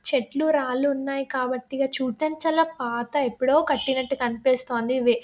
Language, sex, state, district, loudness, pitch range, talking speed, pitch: Telugu, female, Telangana, Nalgonda, -24 LUFS, 250-285 Hz, 150 wpm, 265 Hz